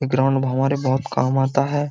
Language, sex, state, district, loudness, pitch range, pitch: Hindi, male, Uttar Pradesh, Jyotiba Phule Nagar, -20 LUFS, 130-140 Hz, 135 Hz